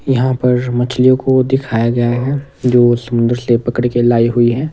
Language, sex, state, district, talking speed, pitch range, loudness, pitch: Hindi, male, Himachal Pradesh, Shimla, 90 wpm, 120-130 Hz, -14 LUFS, 125 Hz